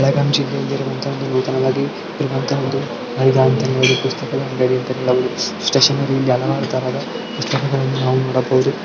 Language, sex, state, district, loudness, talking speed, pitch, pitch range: Kannada, male, Karnataka, Belgaum, -18 LUFS, 70 wpm, 130 Hz, 130-135 Hz